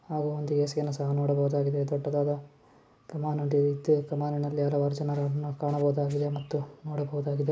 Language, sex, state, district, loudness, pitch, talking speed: Kannada, female, Karnataka, Shimoga, -29 LUFS, 145 Hz, 105 wpm